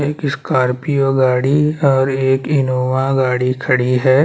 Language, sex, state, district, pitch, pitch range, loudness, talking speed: Hindi, male, Chhattisgarh, Bastar, 130 Hz, 130-140 Hz, -15 LUFS, 125 wpm